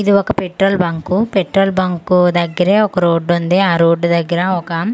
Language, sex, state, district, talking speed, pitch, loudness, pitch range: Telugu, female, Andhra Pradesh, Manyam, 170 wpm, 180 Hz, -14 LUFS, 170-195 Hz